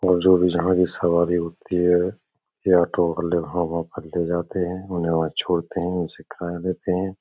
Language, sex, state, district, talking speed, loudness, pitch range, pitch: Hindi, male, Uttar Pradesh, Etah, 210 wpm, -22 LUFS, 85-90 Hz, 90 Hz